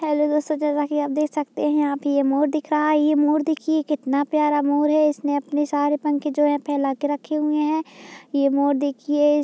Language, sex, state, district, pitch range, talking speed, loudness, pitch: Hindi, female, Bihar, Muzaffarpur, 285-300 Hz, 230 wpm, -21 LUFS, 295 Hz